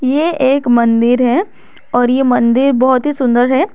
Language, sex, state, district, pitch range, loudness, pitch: Hindi, female, Jharkhand, Garhwa, 245-270 Hz, -12 LUFS, 255 Hz